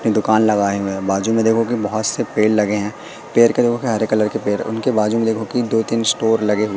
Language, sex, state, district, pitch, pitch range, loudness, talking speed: Hindi, male, Madhya Pradesh, Katni, 110 Hz, 105-115 Hz, -17 LUFS, 275 wpm